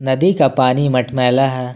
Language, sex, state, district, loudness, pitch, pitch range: Hindi, male, Jharkhand, Ranchi, -15 LUFS, 130 Hz, 125-135 Hz